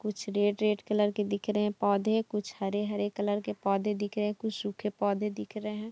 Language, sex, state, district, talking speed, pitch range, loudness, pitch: Hindi, female, Jharkhand, Jamtara, 235 wpm, 205-210 Hz, -31 LUFS, 210 Hz